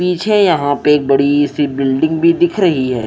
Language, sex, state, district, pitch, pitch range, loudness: Hindi, male, Haryana, Rohtak, 145 Hz, 140-175 Hz, -13 LUFS